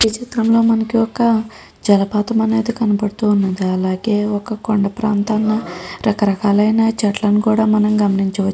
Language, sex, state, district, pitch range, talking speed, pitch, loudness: Telugu, female, Andhra Pradesh, Guntur, 205-225 Hz, 135 wpm, 215 Hz, -16 LUFS